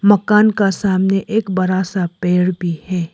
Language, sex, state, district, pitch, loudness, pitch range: Hindi, female, Arunachal Pradesh, Lower Dibang Valley, 190 Hz, -16 LUFS, 180-200 Hz